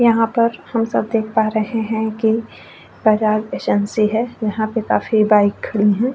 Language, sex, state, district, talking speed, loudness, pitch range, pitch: Hindi, female, Bihar, Vaishali, 185 wpm, -18 LUFS, 215-230 Hz, 220 Hz